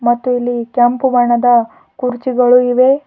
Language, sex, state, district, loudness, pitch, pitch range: Kannada, female, Karnataka, Bidar, -13 LUFS, 245 Hz, 240-250 Hz